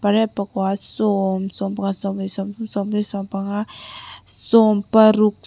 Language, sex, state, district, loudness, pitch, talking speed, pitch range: Mizo, female, Mizoram, Aizawl, -20 LUFS, 200 Hz, 75 wpm, 195-215 Hz